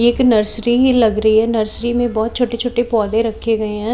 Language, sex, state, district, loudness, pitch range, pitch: Hindi, female, Chhattisgarh, Raipur, -14 LUFS, 220-240 Hz, 230 Hz